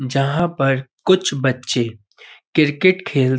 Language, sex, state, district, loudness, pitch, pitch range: Hindi, female, Uttar Pradesh, Budaun, -18 LUFS, 135 Hz, 130-160 Hz